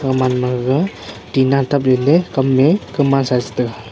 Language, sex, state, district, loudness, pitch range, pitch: Wancho, male, Arunachal Pradesh, Longding, -16 LUFS, 125-140 Hz, 130 Hz